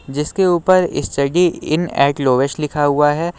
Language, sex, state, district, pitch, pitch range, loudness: Hindi, male, Uttar Pradesh, Lucknow, 150 Hz, 140-175 Hz, -16 LUFS